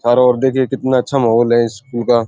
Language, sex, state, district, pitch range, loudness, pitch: Rajasthani, male, Rajasthan, Churu, 120-130 Hz, -15 LUFS, 120 Hz